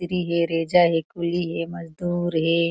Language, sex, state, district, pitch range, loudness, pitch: Chhattisgarhi, female, Chhattisgarh, Korba, 165-175 Hz, -23 LUFS, 170 Hz